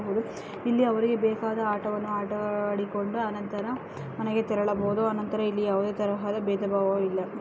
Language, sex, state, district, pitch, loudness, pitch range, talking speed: Kannada, female, Karnataka, Raichur, 210 Hz, -28 LUFS, 205-220 Hz, 115 wpm